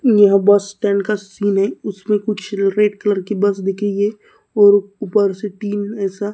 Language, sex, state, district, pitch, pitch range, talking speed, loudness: Hindi, male, Maharashtra, Gondia, 205 Hz, 200-210 Hz, 140 wpm, -17 LUFS